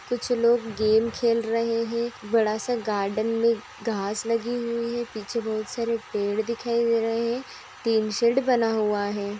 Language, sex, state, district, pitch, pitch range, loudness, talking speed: Magahi, female, Bihar, Gaya, 230 Hz, 215-235 Hz, -25 LUFS, 190 wpm